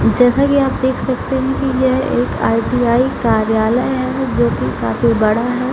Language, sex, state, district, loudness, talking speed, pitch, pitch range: Hindi, female, Bihar, Gaya, -15 LUFS, 180 wpm, 250 Hz, 220-260 Hz